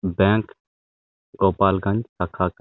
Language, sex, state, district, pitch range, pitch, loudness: Hindi, male, Chhattisgarh, Bastar, 70-100 Hz, 95 Hz, -21 LUFS